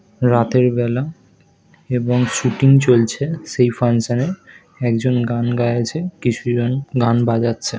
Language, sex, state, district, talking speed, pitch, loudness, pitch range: Bengali, male, West Bengal, North 24 Parganas, 125 wpm, 125 Hz, -17 LUFS, 120-135 Hz